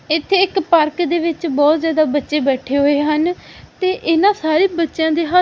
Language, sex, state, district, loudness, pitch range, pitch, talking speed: Punjabi, female, Punjab, Fazilka, -16 LUFS, 300-350 Hz, 325 Hz, 190 wpm